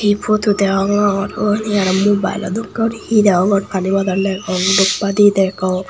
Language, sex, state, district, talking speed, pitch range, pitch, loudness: Chakma, male, Tripura, Unakoti, 175 wpm, 190-205 Hz, 200 Hz, -15 LUFS